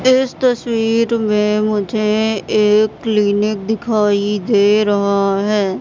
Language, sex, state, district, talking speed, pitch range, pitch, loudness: Hindi, female, Madhya Pradesh, Katni, 105 wpm, 205-225 Hz, 215 Hz, -15 LUFS